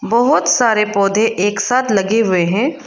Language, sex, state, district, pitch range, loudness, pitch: Hindi, female, Arunachal Pradesh, Lower Dibang Valley, 200-245 Hz, -14 LUFS, 220 Hz